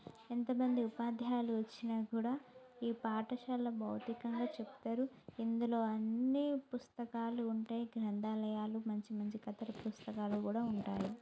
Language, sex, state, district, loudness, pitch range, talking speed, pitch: Telugu, female, Telangana, Nalgonda, -40 LUFS, 220-240 Hz, 100 wpm, 230 Hz